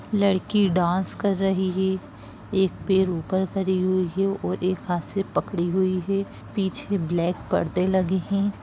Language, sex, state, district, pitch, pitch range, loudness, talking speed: Hindi, female, Chhattisgarh, Rajnandgaon, 190 Hz, 180-195 Hz, -24 LUFS, 160 wpm